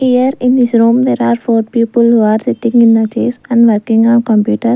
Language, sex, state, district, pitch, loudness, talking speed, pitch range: English, female, Punjab, Fazilka, 235 Hz, -11 LUFS, 225 wpm, 225-245 Hz